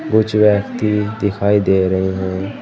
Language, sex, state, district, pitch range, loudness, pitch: Hindi, male, Uttar Pradesh, Saharanpur, 95-105 Hz, -16 LUFS, 105 Hz